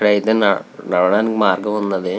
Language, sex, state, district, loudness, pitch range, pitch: Telugu, male, Andhra Pradesh, Visakhapatnam, -17 LUFS, 100-105 Hz, 105 Hz